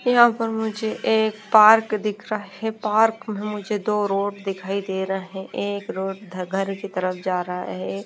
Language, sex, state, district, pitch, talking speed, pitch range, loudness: Hindi, female, Himachal Pradesh, Shimla, 205 Hz, 195 wpm, 190-220 Hz, -22 LUFS